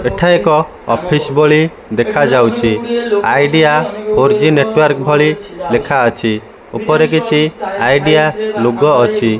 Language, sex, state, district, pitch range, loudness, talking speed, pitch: Odia, male, Odisha, Malkangiri, 140-160 Hz, -12 LUFS, 100 wpm, 155 Hz